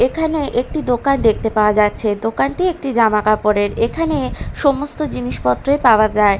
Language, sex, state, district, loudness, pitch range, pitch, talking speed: Bengali, female, Bihar, Katihar, -17 LUFS, 210-285 Hz, 230 Hz, 140 wpm